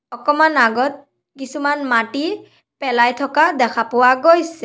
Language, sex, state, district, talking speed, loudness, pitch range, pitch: Assamese, female, Assam, Sonitpur, 115 wpm, -16 LUFS, 245-300 Hz, 275 Hz